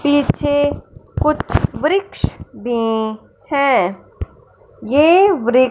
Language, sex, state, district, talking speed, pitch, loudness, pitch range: Hindi, male, Punjab, Fazilka, 75 wpm, 285 Hz, -16 LUFS, 240-300 Hz